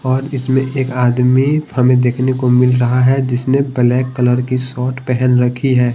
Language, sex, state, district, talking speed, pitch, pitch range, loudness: Hindi, male, Bihar, Patna, 180 wpm, 125 Hz, 125-130 Hz, -14 LUFS